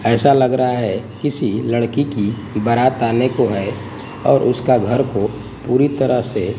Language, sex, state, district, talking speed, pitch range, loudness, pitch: Hindi, male, Gujarat, Gandhinagar, 175 wpm, 115-130 Hz, -17 LUFS, 120 Hz